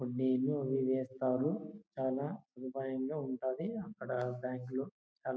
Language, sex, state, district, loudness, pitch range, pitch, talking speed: Telugu, male, Andhra Pradesh, Anantapur, -37 LUFS, 130-140 Hz, 130 Hz, 80 wpm